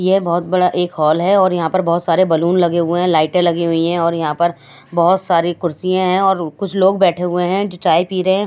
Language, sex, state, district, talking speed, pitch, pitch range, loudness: Hindi, female, Haryana, Rohtak, 260 wpm, 175 Hz, 170-185 Hz, -15 LUFS